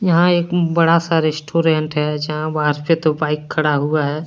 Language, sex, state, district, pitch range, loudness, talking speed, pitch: Hindi, male, Jharkhand, Deoghar, 150-165 Hz, -17 LUFS, 195 wpm, 155 Hz